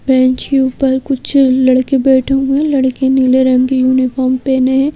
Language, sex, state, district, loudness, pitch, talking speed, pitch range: Hindi, female, Madhya Pradesh, Bhopal, -12 LUFS, 260 Hz, 180 wpm, 255-270 Hz